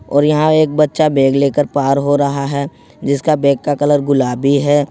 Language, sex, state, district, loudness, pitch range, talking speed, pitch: Hindi, male, Jharkhand, Ranchi, -14 LUFS, 140-145 Hz, 195 wpm, 145 Hz